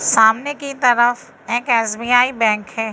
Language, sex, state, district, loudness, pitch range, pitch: Hindi, female, Madhya Pradesh, Bhopal, -16 LUFS, 225-245 Hz, 235 Hz